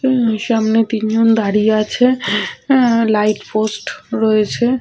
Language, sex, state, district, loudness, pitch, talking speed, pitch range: Bengali, female, Jharkhand, Sahebganj, -15 LUFS, 225 Hz, 125 wpm, 215-240 Hz